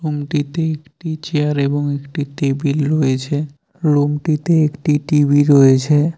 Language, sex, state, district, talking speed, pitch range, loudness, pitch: Bengali, male, West Bengal, Cooch Behar, 125 wpm, 145-155 Hz, -17 LUFS, 150 Hz